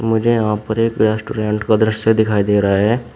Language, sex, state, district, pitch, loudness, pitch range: Hindi, male, Uttar Pradesh, Shamli, 110 Hz, -16 LUFS, 105-115 Hz